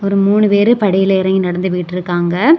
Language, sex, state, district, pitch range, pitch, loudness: Tamil, female, Tamil Nadu, Kanyakumari, 180-205 Hz, 190 Hz, -14 LUFS